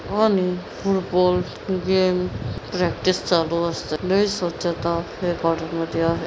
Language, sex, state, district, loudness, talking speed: Marathi, female, Maharashtra, Chandrapur, -22 LUFS, 105 wpm